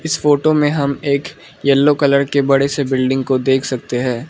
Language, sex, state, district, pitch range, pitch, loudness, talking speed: Hindi, male, Arunachal Pradesh, Lower Dibang Valley, 130-145 Hz, 140 Hz, -16 LUFS, 210 wpm